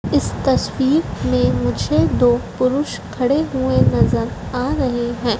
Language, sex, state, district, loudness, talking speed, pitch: Hindi, female, Madhya Pradesh, Dhar, -18 LUFS, 135 wpm, 240 Hz